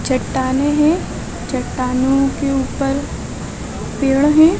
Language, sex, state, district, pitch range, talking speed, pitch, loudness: Hindi, female, Chhattisgarh, Balrampur, 265-290 Hz, 90 wpm, 275 Hz, -18 LUFS